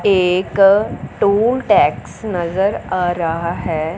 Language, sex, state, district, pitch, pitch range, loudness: Hindi, male, Punjab, Fazilka, 185 Hz, 175-200 Hz, -16 LUFS